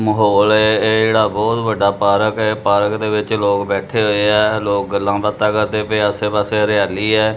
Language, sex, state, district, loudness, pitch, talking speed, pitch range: Punjabi, male, Punjab, Kapurthala, -16 LUFS, 105 Hz, 195 wpm, 100-110 Hz